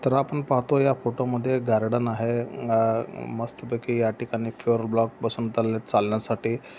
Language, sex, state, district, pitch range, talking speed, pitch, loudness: Marathi, male, Maharashtra, Solapur, 115-125 Hz, 140 wpm, 115 Hz, -25 LUFS